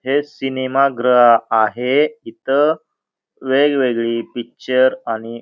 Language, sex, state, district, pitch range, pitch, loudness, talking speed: Marathi, male, Maharashtra, Pune, 115-140 Hz, 130 Hz, -16 LUFS, 100 wpm